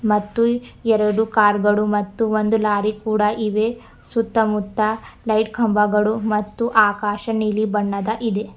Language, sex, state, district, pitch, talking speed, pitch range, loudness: Kannada, female, Karnataka, Bidar, 215 Hz, 120 wpm, 210-225 Hz, -19 LUFS